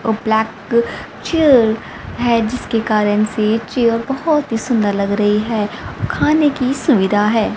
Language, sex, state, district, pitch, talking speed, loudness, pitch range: Hindi, female, Haryana, Rohtak, 225 Hz, 145 wpm, -16 LUFS, 215-250 Hz